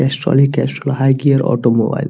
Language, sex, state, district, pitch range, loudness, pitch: Hindi, male, Bihar, Araria, 135-140 Hz, -14 LUFS, 135 Hz